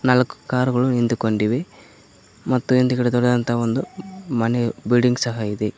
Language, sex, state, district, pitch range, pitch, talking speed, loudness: Kannada, male, Karnataka, Koppal, 115-125 Hz, 120 Hz, 135 wpm, -20 LUFS